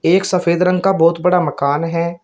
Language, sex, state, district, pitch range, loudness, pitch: Hindi, male, Uttar Pradesh, Shamli, 165-180 Hz, -15 LUFS, 170 Hz